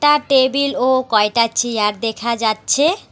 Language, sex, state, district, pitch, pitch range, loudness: Bengali, female, West Bengal, Alipurduar, 240 Hz, 225-280 Hz, -16 LUFS